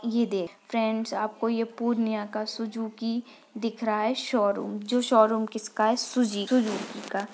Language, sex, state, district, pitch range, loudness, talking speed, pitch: Hindi, female, Bihar, Purnia, 215-235 Hz, -27 LUFS, 165 wpm, 225 Hz